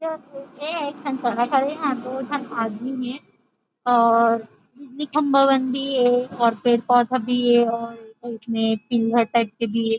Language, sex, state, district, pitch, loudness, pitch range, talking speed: Chhattisgarhi, female, Chhattisgarh, Rajnandgaon, 245 Hz, -21 LUFS, 230-275 Hz, 170 wpm